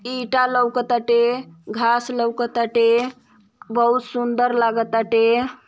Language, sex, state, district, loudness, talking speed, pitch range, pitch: Bhojpuri, female, Uttar Pradesh, Ghazipur, -19 LUFS, 75 wpm, 230-245 Hz, 240 Hz